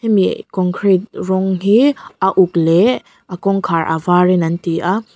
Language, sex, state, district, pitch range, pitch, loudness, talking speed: Mizo, female, Mizoram, Aizawl, 175-200 Hz, 185 Hz, -15 LUFS, 175 wpm